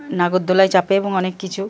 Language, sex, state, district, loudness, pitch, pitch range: Bengali, male, Jharkhand, Jamtara, -18 LUFS, 190 Hz, 185-195 Hz